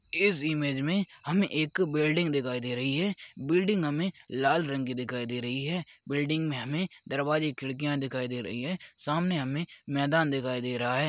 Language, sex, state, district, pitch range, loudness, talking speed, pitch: Hindi, male, Chhattisgarh, Rajnandgaon, 130-170 Hz, -30 LUFS, 190 wpm, 145 Hz